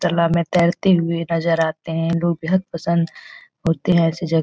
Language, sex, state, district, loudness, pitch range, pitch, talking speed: Hindi, female, Bihar, Jahanabad, -19 LUFS, 165-175 Hz, 170 Hz, 205 wpm